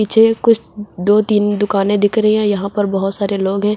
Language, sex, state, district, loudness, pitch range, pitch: Hindi, female, Uttar Pradesh, Lucknow, -15 LUFS, 200-215 Hz, 205 Hz